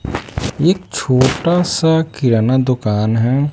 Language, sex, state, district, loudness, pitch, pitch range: Hindi, male, Bihar, West Champaran, -15 LUFS, 130 Hz, 120-160 Hz